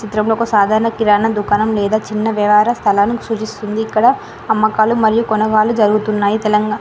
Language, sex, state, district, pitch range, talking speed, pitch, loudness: Telugu, female, Telangana, Mahabubabad, 210-220 Hz, 150 wpm, 215 Hz, -14 LUFS